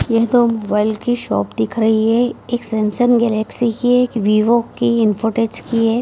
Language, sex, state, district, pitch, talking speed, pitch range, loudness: Hindi, female, Bihar, Bhagalpur, 230 Hz, 180 wpm, 220-240 Hz, -16 LUFS